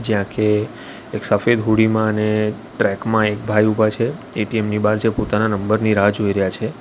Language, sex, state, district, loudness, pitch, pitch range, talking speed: Gujarati, male, Gujarat, Valsad, -18 LUFS, 110 Hz, 105-110 Hz, 205 wpm